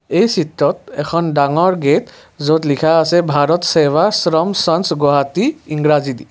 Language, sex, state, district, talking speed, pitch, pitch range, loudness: Assamese, male, Assam, Kamrup Metropolitan, 145 wpm, 160 Hz, 145-175 Hz, -15 LUFS